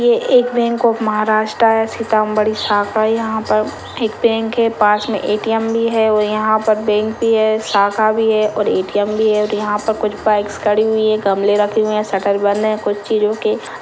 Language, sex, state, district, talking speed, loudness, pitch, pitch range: Hindi, female, Maharashtra, Nagpur, 220 wpm, -16 LUFS, 215 Hz, 210-220 Hz